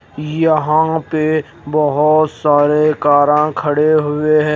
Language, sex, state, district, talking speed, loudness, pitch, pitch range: Hindi, male, Odisha, Khordha, 105 wpm, -14 LUFS, 150 Hz, 150-155 Hz